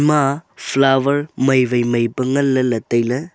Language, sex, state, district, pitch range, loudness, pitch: Wancho, male, Arunachal Pradesh, Longding, 125-140 Hz, -17 LUFS, 135 Hz